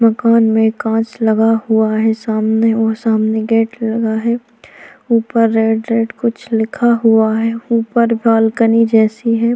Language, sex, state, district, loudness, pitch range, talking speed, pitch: Hindi, female, Maharashtra, Chandrapur, -14 LUFS, 220-230 Hz, 145 wpm, 225 Hz